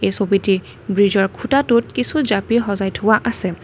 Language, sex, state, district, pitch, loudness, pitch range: Assamese, female, Assam, Kamrup Metropolitan, 200 Hz, -18 LUFS, 195-235 Hz